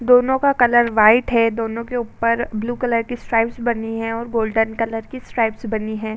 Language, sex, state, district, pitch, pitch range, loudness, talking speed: Hindi, female, Uttar Pradesh, Budaun, 230 Hz, 225-240 Hz, -19 LUFS, 205 wpm